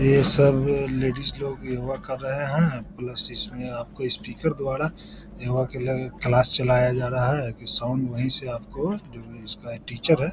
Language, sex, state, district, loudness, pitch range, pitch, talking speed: Hindi, male, Bihar, Lakhisarai, -24 LUFS, 125-140 Hz, 130 Hz, 180 wpm